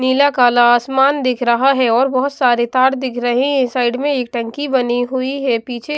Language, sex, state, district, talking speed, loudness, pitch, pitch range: Hindi, female, Haryana, Jhajjar, 220 wpm, -15 LUFS, 255 Hz, 240-270 Hz